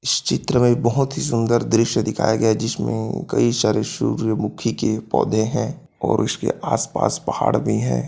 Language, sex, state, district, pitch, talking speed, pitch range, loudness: Hindi, male, Chhattisgarh, Korba, 110 Hz, 170 wpm, 110-120 Hz, -20 LUFS